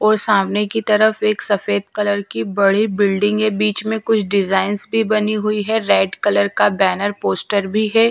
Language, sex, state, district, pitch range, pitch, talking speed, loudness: Hindi, female, Bihar, Patna, 200-215 Hz, 210 Hz, 190 wpm, -17 LUFS